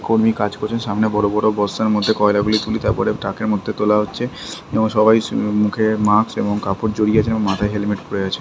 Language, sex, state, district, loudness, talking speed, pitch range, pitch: Bengali, male, West Bengal, Dakshin Dinajpur, -18 LUFS, 205 wpm, 105-110 Hz, 105 Hz